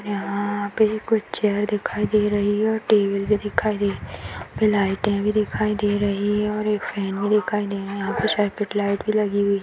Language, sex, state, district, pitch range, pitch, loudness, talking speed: Kumaoni, female, Uttarakhand, Tehri Garhwal, 200-210 Hz, 205 Hz, -22 LUFS, 200 wpm